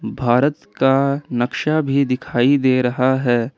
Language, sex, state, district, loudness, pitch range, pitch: Hindi, male, Jharkhand, Ranchi, -18 LUFS, 125-140 Hz, 130 Hz